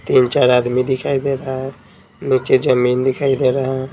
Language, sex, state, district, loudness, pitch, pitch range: Hindi, male, Bihar, Patna, -16 LUFS, 130 Hz, 125-135 Hz